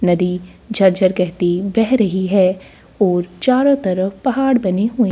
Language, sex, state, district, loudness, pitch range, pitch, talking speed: Hindi, female, Bihar, Kishanganj, -16 LUFS, 180-225 Hz, 190 Hz, 150 wpm